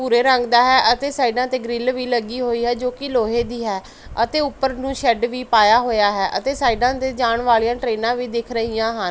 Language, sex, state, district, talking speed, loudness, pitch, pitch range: Punjabi, female, Punjab, Pathankot, 230 wpm, -19 LUFS, 240 Hz, 230-255 Hz